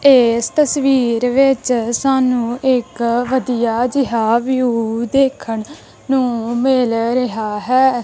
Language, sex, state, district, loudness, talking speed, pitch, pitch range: Punjabi, female, Punjab, Kapurthala, -16 LUFS, 95 wpm, 245 Hz, 235-265 Hz